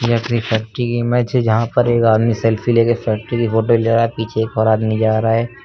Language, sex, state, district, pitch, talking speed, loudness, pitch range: Hindi, male, Uttar Pradesh, Lucknow, 115 Hz, 245 wpm, -16 LUFS, 110-120 Hz